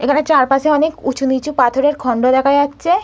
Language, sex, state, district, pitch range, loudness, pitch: Bengali, female, West Bengal, Purulia, 265-300 Hz, -15 LUFS, 280 Hz